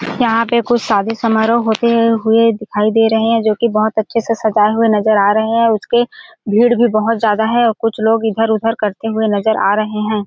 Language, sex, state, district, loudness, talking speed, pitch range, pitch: Hindi, female, Chhattisgarh, Balrampur, -14 LUFS, 215 wpm, 215-230 Hz, 225 Hz